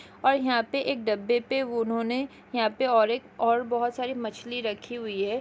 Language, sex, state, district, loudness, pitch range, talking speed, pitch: Hindi, female, Chhattisgarh, Kabirdham, -27 LUFS, 225-250 Hz, 200 wpm, 240 Hz